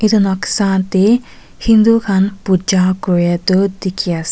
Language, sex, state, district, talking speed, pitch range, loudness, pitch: Nagamese, female, Nagaland, Kohima, 140 wpm, 185-205 Hz, -14 LUFS, 190 Hz